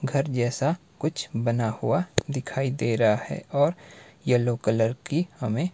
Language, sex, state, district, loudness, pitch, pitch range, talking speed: Hindi, male, Himachal Pradesh, Shimla, -26 LUFS, 135 Hz, 115-150 Hz, 145 wpm